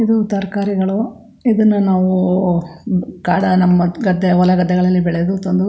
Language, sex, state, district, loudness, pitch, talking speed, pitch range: Kannada, female, Karnataka, Chamarajanagar, -15 LUFS, 185 Hz, 115 wpm, 180-200 Hz